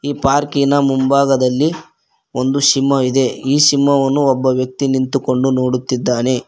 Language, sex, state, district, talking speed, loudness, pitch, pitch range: Kannada, male, Karnataka, Koppal, 100 wpm, -15 LUFS, 135 Hz, 130-140 Hz